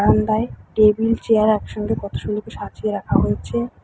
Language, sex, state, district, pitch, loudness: Bengali, female, West Bengal, Alipurduar, 210 Hz, -20 LUFS